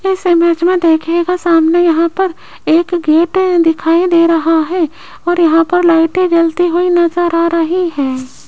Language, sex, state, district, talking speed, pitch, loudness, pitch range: Hindi, female, Rajasthan, Jaipur, 165 wpm, 340 Hz, -12 LUFS, 330-355 Hz